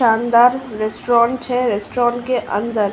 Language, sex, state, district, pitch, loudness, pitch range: Hindi, female, Uttar Pradesh, Ghazipur, 235 Hz, -17 LUFS, 215-245 Hz